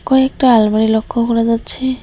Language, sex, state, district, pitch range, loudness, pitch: Bengali, female, West Bengal, Alipurduar, 225-260 Hz, -14 LUFS, 235 Hz